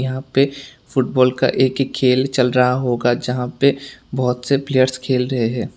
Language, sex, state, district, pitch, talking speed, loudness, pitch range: Hindi, male, Tripura, West Tripura, 130 Hz, 175 wpm, -18 LUFS, 125-135 Hz